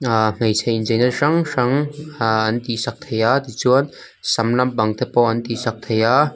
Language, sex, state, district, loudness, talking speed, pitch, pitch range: Mizo, male, Mizoram, Aizawl, -19 LUFS, 180 wpm, 120 Hz, 115-130 Hz